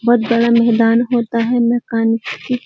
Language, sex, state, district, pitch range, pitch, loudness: Hindi, female, Uttar Pradesh, Jyotiba Phule Nagar, 230-240 Hz, 235 Hz, -15 LUFS